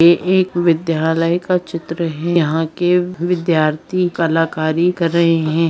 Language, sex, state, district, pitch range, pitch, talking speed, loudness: Hindi, female, Bihar, Vaishali, 165-175 Hz, 170 Hz, 135 wpm, -16 LUFS